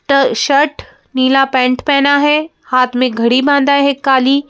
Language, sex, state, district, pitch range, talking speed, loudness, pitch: Hindi, female, Madhya Pradesh, Bhopal, 255-285 Hz, 145 wpm, -12 LUFS, 275 Hz